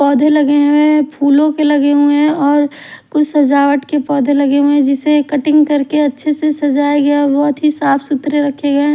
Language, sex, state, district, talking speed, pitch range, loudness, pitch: Hindi, female, Haryana, Rohtak, 215 wpm, 285-300 Hz, -12 LUFS, 290 Hz